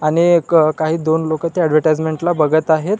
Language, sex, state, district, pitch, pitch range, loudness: Marathi, male, Maharashtra, Nagpur, 160 Hz, 155-170 Hz, -15 LUFS